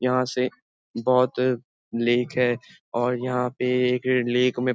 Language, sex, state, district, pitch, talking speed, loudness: Hindi, male, Bihar, Lakhisarai, 125 Hz, 150 wpm, -24 LUFS